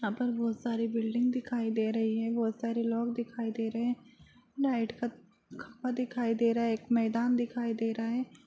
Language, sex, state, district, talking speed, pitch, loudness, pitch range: Hindi, female, Bihar, Bhagalpur, 205 wpm, 230 Hz, -32 LUFS, 225-240 Hz